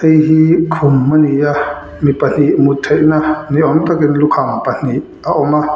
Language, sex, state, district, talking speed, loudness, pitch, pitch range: Mizo, male, Mizoram, Aizawl, 185 wpm, -12 LUFS, 150 Hz, 145-155 Hz